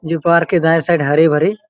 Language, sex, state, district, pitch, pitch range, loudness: Hindi, male, Chhattisgarh, Raigarh, 165 Hz, 160-170 Hz, -14 LUFS